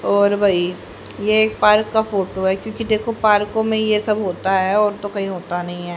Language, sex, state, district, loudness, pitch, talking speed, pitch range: Hindi, male, Haryana, Rohtak, -18 LUFS, 205 Hz, 220 wpm, 190-215 Hz